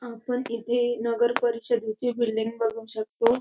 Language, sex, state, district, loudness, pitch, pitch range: Marathi, female, Maharashtra, Dhule, -26 LUFS, 235 Hz, 225-240 Hz